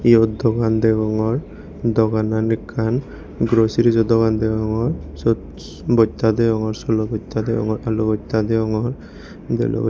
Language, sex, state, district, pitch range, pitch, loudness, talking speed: Chakma, male, Tripura, West Tripura, 110-115 Hz, 110 Hz, -19 LUFS, 110 wpm